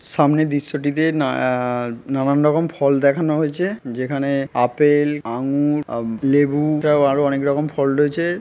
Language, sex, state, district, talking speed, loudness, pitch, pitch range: Bengali, male, West Bengal, Kolkata, 155 wpm, -19 LUFS, 145 Hz, 135-150 Hz